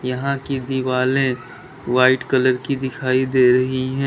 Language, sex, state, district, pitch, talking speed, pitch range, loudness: Hindi, male, Uttar Pradesh, Lalitpur, 130 Hz, 145 wpm, 130-135 Hz, -19 LUFS